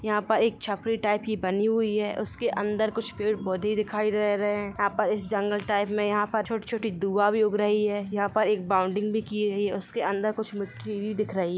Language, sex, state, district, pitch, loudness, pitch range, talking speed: Hindi, female, Jharkhand, Jamtara, 210 Hz, -27 LUFS, 205-215 Hz, 250 wpm